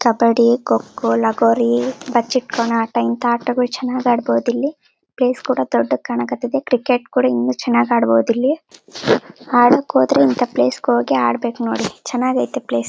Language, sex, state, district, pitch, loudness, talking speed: Kannada, female, Karnataka, Bellary, 235 Hz, -17 LUFS, 150 wpm